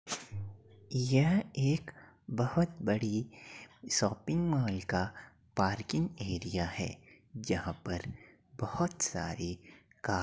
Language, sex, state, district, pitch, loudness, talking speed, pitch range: Hindi, male, Uttar Pradesh, Jyotiba Phule Nagar, 110 Hz, -34 LUFS, 95 wpm, 95-150 Hz